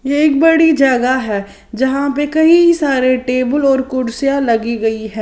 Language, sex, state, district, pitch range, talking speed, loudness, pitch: Hindi, female, Maharashtra, Washim, 240-290 Hz, 170 wpm, -13 LUFS, 265 Hz